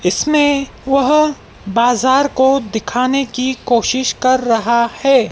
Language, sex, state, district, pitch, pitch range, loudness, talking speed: Hindi, female, Madhya Pradesh, Dhar, 260 Hz, 235-275 Hz, -15 LUFS, 115 wpm